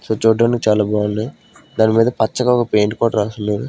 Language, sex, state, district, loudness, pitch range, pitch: Telugu, male, Andhra Pradesh, Sri Satya Sai, -16 LUFS, 105-115 Hz, 110 Hz